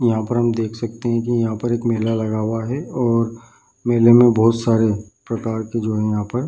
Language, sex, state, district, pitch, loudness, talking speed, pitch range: Hindi, male, Bihar, Bhagalpur, 115 Hz, -19 LUFS, 240 wpm, 110-120 Hz